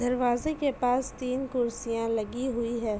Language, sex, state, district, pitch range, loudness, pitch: Hindi, female, Uttar Pradesh, Etah, 230-260 Hz, -29 LUFS, 245 Hz